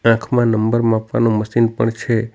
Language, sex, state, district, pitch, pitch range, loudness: Gujarati, male, Gujarat, Navsari, 115 Hz, 110-115 Hz, -17 LUFS